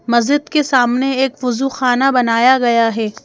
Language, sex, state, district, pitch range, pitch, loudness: Hindi, female, Madhya Pradesh, Bhopal, 235-270 Hz, 250 Hz, -14 LUFS